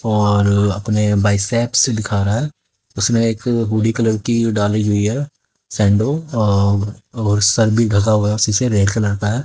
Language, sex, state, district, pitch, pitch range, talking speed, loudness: Hindi, male, Haryana, Jhajjar, 105 Hz, 105-115 Hz, 170 wpm, -16 LUFS